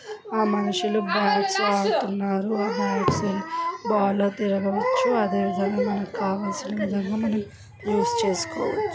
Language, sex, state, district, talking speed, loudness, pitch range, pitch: Telugu, female, Andhra Pradesh, Krishna, 115 wpm, -24 LUFS, 200-225 Hz, 205 Hz